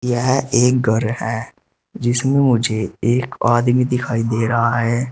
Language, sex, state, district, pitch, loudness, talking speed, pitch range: Hindi, male, Uttar Pradesh, Shamli, 120 Hz, -18 LUFS, 140 wpm, 115-125 Hz